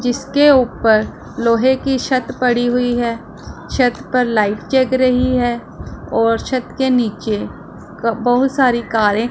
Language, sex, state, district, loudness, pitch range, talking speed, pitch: Hindi, female, Punjab, Pathankot, -16 LUFS, 230-255 Hz, 140 wpm, 245 Hz